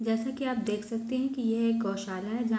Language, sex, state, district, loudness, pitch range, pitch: Hindi, female, Bihar, East Champaran, -31 LUFS, 220-240 Hz, 230 Hz